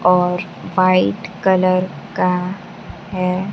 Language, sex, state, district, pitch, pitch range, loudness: Hindi, female, Bihar, Kaimur, 185 Hz, 180-190 Hz, -18 LUFS